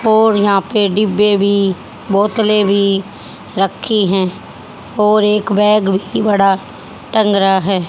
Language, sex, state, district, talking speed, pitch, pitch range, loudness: Hindi, female, Haryana, Rohtak, 130 wpm, 205 Hz, 195-210 Hz, -14 LUFS